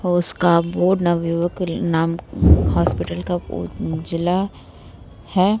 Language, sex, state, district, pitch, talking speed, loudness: Hindi, female, Bihar, Vaishali, 170 Hz, 120 wpm, -20 LUFS